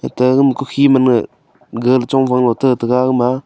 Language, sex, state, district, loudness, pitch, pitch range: Wancho, male, Arunachal Pradesh, Longding, -14 LUFS, 130 Hz, 125-135 Hz